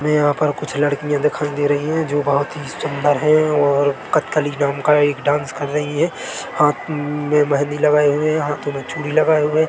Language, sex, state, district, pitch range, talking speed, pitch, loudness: Hindi, male, Chhattisgarh, Bilaspur, 145-150 Hz, 210 wpm, 145 Hz, -18 LUFS